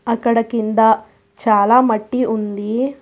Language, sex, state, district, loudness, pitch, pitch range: Telugu, female, Telangana, Hyderabad, -16 LUFS, 225 Hz, 215-240 Hz